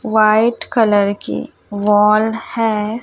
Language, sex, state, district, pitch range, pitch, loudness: Hindi, female, Chhattisgarh, Raipur, 210-225 Hz, 220 Hz, -15 LUFS